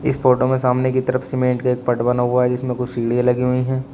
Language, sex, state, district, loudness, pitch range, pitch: Hindi, male, Uttar Pradesh, Shamli, -19 LUFS, 125-130 Hz, 125 Hz